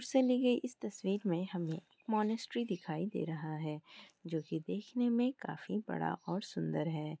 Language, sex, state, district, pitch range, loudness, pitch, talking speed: Hindi, female, Bihar, Kishanganj, 155-235 Hz, -37 LUFS, 190 Hz, 165 wpm